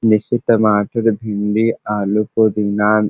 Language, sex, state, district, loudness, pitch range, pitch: Bhojpuri, male, Uttar Pradesh, Varanasi, -16 LUFS, 105-115 Hz, 105 Hz